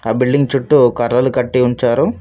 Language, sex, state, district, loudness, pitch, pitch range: Telugu, male, Telangana, Mahabubabad, -14 LUFS, 125 Hz, 120-135 Hz